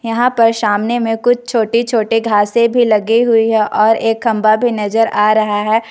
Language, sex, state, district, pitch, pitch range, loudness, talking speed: Hindi, female, Jharkhand, Ranchi, 225 Hz, 215-235 Hz, -13 LUFS, 205 wpm